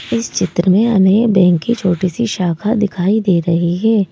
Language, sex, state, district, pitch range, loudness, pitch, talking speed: Hindi, male, Madhya Pradesh, Bhopal, 175-220 Hz, -14 LUFS, 185 Hz, 190 wpm